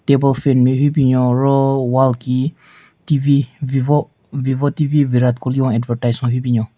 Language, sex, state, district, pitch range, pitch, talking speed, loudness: Rengma, male, Nagaland, Kohima, 125-140 Hz, 135 Hz, 170 wpm, -16 LUFS